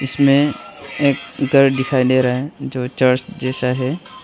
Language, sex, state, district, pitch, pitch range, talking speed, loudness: Hindi, male, Arunachal Pradesh, Longding, 135 Hz, 130-140 Hz, 155 wpm, -17 LUFS